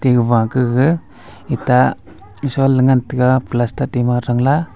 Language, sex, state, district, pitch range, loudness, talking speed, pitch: Wancho, male, Arunachal Pradesh, Longding, 120-135 Hz, -16 LUFS, 115 wpm, 125 Hz